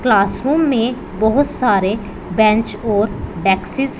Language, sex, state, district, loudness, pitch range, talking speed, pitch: Hindi, female, Punjab, Pathankot, -17 LUFS, 200-255 Hz, 105 wpm, 220 Hz